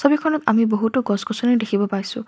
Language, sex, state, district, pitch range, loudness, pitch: Assamese, female, Assam, Kamrup Metropolitan, 210-250 Hz, -20 LUFS, 225 Hz